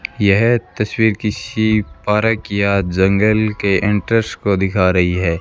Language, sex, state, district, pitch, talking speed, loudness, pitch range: Hindi, male, Rajasthan, Bikaner, 105 Hz, 135 wpm, -16 LUFS, 95-110 Hz